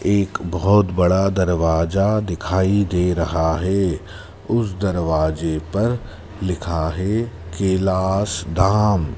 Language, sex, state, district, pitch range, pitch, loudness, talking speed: Hindi, male, Madhya Pradesh, Dhar, 85-100 Hz, 95 Hz, -20 LUFS, 100 wpm